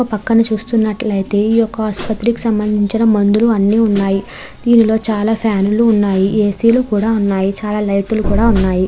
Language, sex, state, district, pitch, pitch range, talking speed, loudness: Telugu, female, Andhra Pradesh, Krishna, 215 Hz, 205-225 Hz, 175 wpm, -14 LUFS